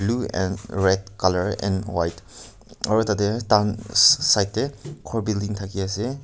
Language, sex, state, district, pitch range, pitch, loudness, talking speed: Nagamese, male, Nagaland, Kohima, 95-110 Hz, 105 Hz, -22 LUFS, 145 wpm